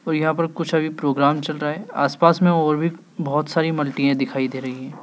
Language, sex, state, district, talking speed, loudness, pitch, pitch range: Hindi, male, Madhya Pradesh, Dhar, 240 wpm, -21 LUFS, 155 Hz, 140-165 Hz